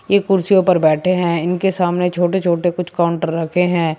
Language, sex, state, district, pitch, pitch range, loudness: Hindi, male, Uttar Pradesh, Shamli, 175 Hz, 170-185 Hz, -16 LUFS